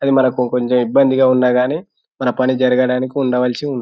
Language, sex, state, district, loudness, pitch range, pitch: Telugu, male, Telangana, Nalgonda, -16 LUFS, 125-135 Hz, 130 Hz